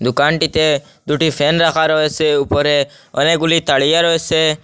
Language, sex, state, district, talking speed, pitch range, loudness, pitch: Bengali, male, Assam, Hailakandi, 115 wpm, 145-160 Hz, -15 LUFS, 155 Hz